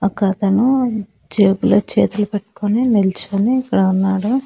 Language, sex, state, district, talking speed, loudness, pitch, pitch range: Telugu, female, Andhra Pradesh, Annamaya, 95 wpm, -17 LUFS, 205 Hz, 195-230 Hz